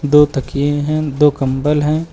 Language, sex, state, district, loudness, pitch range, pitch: Hindi, male, Uttar Pradesh, Lucknow, -15 LUFS, 140-150 Hz, 145 Hz